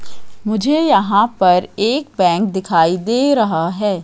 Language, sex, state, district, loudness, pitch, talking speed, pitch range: Hindi, female, Madhya Pradesh, Katni, -15 LUFS, 205 Hz, 135 wpm, 185-230 Hz